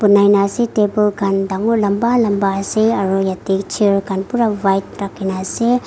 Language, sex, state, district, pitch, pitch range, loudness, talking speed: Nagamese, female, Nagaland, Kohima, 200 Hz, 195-215 Hz, -16 LUFS, 185 wpm